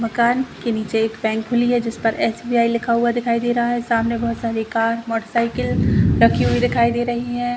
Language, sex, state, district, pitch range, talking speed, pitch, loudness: Hindi, female, Chhattisgarh, Rajnandgaon, 225-240 Hz, 215 wpm, 235 Hz, -19 LUFS